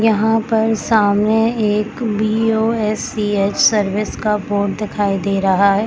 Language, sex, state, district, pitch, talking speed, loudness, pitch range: Hindi, female, Bihar, Darbhanga, 215 Hz, 120 wpm, -16 LUFS, 205-220 Hz